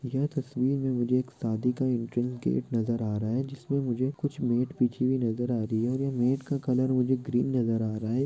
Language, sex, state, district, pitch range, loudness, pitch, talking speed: Hindi, male, Andhra Pradesh, Chittoor, 120-135 Hz, -29 LUFS, 125 Hz, 245 wpm